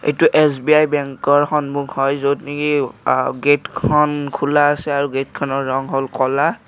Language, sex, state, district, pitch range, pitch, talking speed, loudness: Assamese, male, Assam, Kamrup Metropolitan, 135-150 Hz, 145 Hz, 150 wpm, -17 LUFS